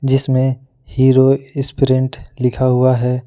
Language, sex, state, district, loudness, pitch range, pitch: Hindi, male, Jharkhand, Ranchi, -15 LUFS, 130-135 Hz, 130 Hz